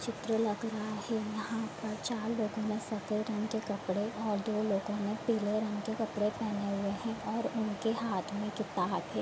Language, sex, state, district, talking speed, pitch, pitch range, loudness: Hindi, female, Bihar, Gopalganj, 190 wpm, 215 Hz, 205-220 Hz, -35 LUFS